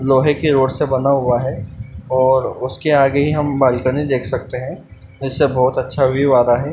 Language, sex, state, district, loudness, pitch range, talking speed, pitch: Hindi, male, Madhya Pradesh, Dhar, -16 LUFS, 125-140 Hz, 205 wpm, 130 Hz